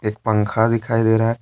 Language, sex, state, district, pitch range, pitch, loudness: Hindi, male, Jharkhand, Deoghar, 110-115 Hz, 110 Hz, -18 LUFS